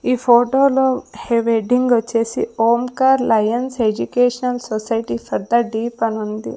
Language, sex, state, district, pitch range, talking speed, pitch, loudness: Telugu, female, Andhra Pradesh, Sri Satya Sai, 225-250 Hz, 130 wpm, 235 Hz, -17 LUFS